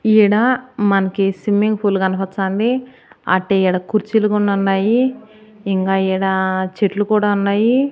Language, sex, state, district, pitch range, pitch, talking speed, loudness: Telugu, female, Andhra Pradesh, Annamaya, 195-215 Hz, 205 Hz, 115 wpm, -17 LUFS